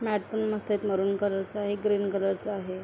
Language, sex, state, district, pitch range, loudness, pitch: Marathi, female, Maharashtra, Aurangabad, 195-210 Hz, -29 LUFS, 205 Hz